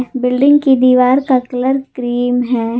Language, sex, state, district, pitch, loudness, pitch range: Hindi, female, Jharkhand, Garhwa, 255 Hz, -13 LUFS, 245-265 Hz